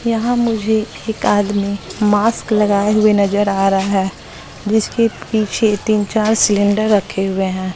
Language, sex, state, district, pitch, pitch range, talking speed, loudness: Hindi, female, Bihar, West Champaran, 210 Hz, 200-220 Hz, 145 wpm, -16 LUFS